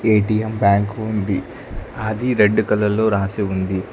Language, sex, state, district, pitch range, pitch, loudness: Telugu, male, Telangana, Hyderabad, 100-110 Hz, 105 Hz, -19 LUFS